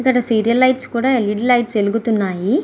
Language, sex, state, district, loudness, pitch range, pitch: Telugu, female, Andhra Pradesh, Srikakulam, -16 LUFS, 215-255 Hz, 235 Hz